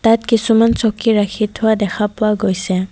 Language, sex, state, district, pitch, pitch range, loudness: Assamese, female, Assam, Kamrup Metropolitan, 215 Hz, 205-225 Hz, -16 LUFS